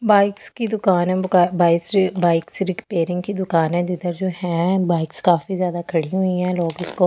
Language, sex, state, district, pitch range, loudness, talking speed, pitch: Hindi, female, Delhi, New Delhi, 175-190 Hz, -20 LUFS, 205 wpm, 180 Hz